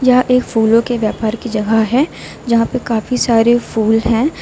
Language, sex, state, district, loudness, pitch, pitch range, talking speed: Hindi, female, Uttar Pradesh, Lucknow, -14 LUFS, 230 Hz, 225-250 Hz, 190 wpm